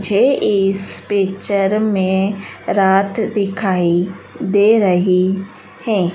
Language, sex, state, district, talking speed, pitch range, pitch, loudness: Hindi, female, Madhya Pradesh, Dhar, 90 wpm, 190-205 Hz, 195 Hz, -16 LUFS